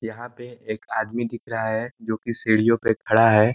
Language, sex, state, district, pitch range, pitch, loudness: Hindi, male, Uttar Pradesh, Ghazipur, 110-120 Hz, 115 Hz, -22 LUFS